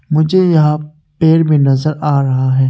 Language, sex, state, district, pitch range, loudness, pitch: Hindi, male, Arunachal Pradesh, Longding, 140-155 Hz, -13 LUFS, 150 Hz